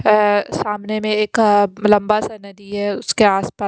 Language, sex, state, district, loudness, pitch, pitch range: Hindi, female, Bihar, Kaimur, -17 LUFS, 210 Hz, 205-215 Hz